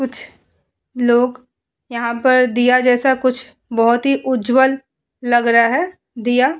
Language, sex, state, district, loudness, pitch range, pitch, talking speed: Hindi, female, Uttar Pradesh, Muzaffarnagar, -16 LUFS, 240-265 Hz, 250 Hz, 125 wpm